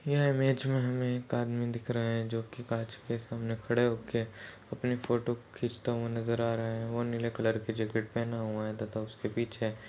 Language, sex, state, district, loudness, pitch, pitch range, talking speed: Hindi, male, Goa, North and South Goa, -33 LUFS, 115 Hz, 115-120 Hz, 205 wpm